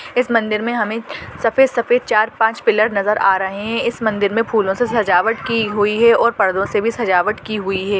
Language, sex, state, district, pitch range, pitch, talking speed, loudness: Hindi, female, Chhattisgarh, Bastar, 200-230 Hz, 215 Hz, 225 wpm, -17 LUFS